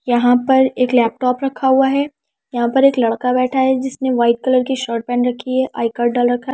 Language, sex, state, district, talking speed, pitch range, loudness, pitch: Hindi, female, Delhi, New Delhi, 240 wpm, 245-265 Hz, -16 LUFS, 250 Hz